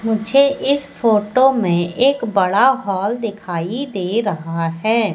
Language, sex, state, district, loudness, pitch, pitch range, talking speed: Hindi, female, Madhya Pradesh, Katni, -17 LUFS, 220 Hz, 190-260 Hz, 130 wpm